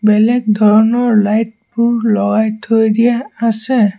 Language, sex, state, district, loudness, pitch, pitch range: Assamese, male, Assam, Sonitpur, -13 LUFS, 225 Hz, 215-235 Hz